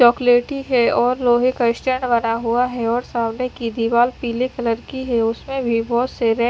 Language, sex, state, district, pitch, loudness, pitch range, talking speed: Hindi, female, Chandigarh, Chandigarh, 240 Hz, -19 LUFS, 235-255 Hz, 210 wpm